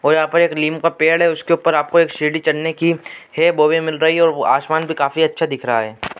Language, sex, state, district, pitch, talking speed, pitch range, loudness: Hindi, male, Bihar, Begusarai, 160 Hz, 280 wpm, 155-165 Hz, -16 LUFS